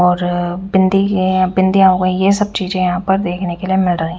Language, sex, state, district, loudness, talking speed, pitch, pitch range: Hindi, female, Haryana, Rohtak, -15 LUFS, 215 wpm, 185 Hz, 180-190 Hz